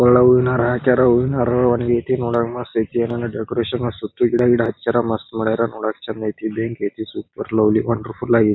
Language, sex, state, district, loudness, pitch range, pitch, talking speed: Kannada, male, Karnataka, Bijapur, -19 LUFS, 110-120 Hz, 120 Hz, 190 wpm